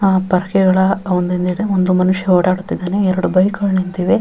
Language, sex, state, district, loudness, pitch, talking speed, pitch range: Kannada, female, Karnataka, Raichur, -15 LUFS, 185 Hz, 170 wpm, 185-195 Hz